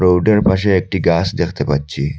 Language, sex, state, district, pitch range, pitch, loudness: Bengali, male, Assam, Hailakandi, 70-95 Hz, 90 Hz, -16 LUFS